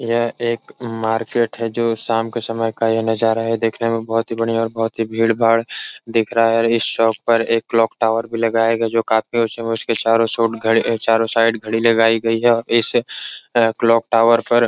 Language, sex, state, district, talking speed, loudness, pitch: Hindi, male, Uttar Pradesh, Etah, 195 wpm, -17 LUFS, 115 Hz